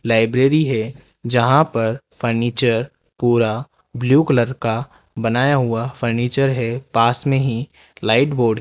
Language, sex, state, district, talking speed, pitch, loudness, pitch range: Hindi, male, Rajasthan, Jaipur, 130 wpm, 120 Hz, -18 LUFS, 115-135 Hz